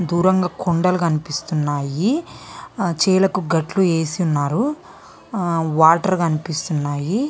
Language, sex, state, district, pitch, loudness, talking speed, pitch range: Telugu, female, Andhra Pradesh, Visakhapatnam, 170 Hz, -19 LUFS, 90 wpm, 155-185 Hz